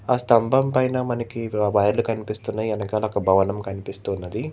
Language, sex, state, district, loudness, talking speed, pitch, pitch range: Telugu, male, Telangana, Hyderabad, -22 LUFS, 120 wpm, 110 Hz, 100-120 Hz